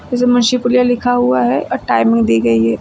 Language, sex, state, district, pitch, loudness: Hindi, female, Uttar Pradesh, Lucknow, 240 Hz, -13 LUFS